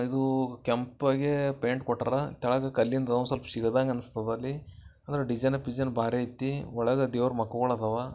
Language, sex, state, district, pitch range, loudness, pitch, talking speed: Kannada, male, Karnataka, Bijapur, 120-135 Hz, -29 LUFS, 125 Hz, 120 wpm